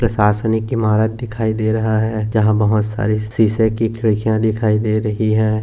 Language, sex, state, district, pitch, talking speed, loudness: Hindi, male, Maharashtra, Dhule, 110 Hz, 180 wpm, -17 LUFS